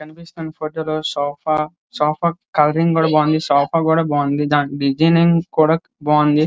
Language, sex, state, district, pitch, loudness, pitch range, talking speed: Telugu, male, Andhra Pradesh, Srikakulam, 155 Hz, -17 LUFS, 150-165 Hz, 130 wpm